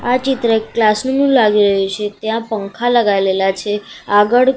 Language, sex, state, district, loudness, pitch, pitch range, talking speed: Gujarati, female, Gujarat, Gandhinagar, -15 LUFS, 220 Hz, 205-245 Hz, 170 wpm